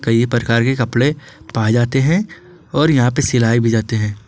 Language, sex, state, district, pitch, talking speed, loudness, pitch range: Hindi, male, Jharkhand, Garhwa, 120 Hz, 195 wpm, -16 LUFS, 115-145 Hz